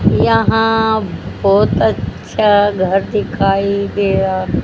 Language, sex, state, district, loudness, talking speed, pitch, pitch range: Hindi, female, Haryana, Charkhi Dadri, -14 LUFS, 90 wpm, 200 Hz, 190-205 Hz